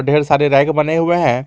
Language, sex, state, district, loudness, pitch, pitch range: Hindi, male, Jharkhand, Garhwa, -14 LUFS, 145 Hz, 140-155 Hz